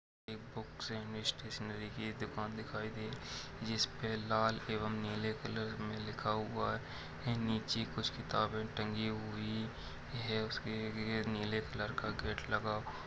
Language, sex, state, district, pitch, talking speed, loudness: Hindi, male, Bihar, Muzaffarpur, 110 Hz, 135 wpm, -39 LUFS